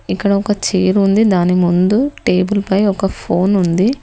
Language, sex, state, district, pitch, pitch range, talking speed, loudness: Telugu, female, Telangana, Hyderabad, 195 Hz, 185-205 Hz, 165 wpm, -14 LUFS